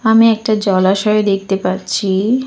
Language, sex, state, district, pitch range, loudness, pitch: Bengali, female, Jharkhand, Jamtara, 190-220 Hz, -14 LUFS, 205 Hz